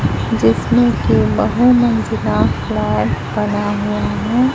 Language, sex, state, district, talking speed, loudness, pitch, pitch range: Hindi, female, Chhattisgarh, Raipur, 105 wpm, -16 LUFS, 110 Hz, 105-120 Hz